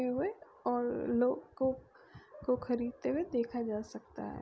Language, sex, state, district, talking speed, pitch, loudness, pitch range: Bhojpuri, female, Uttar Pradesh, Deoria, 150 wpm, 250 Hz, -35 LUFS, 240-260 Hz